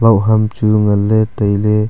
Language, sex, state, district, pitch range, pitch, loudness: Wancho, male, Arunachal Pradesh, Longding, 105-110 Hz, 105 Hz, -13 LUFS